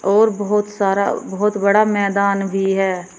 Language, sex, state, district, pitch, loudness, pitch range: Hindi, female, Uttar Pradesh, Shamli, 200 Hz, -17 LUFS, 195-210 Hz